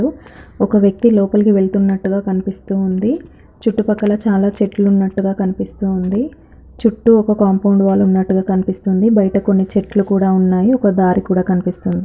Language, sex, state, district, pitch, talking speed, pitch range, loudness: Telugu, female, Andhra Pradesh, Anantapur, 195 Hz, 130 wpm, 190-210 Hz, -15 LUFS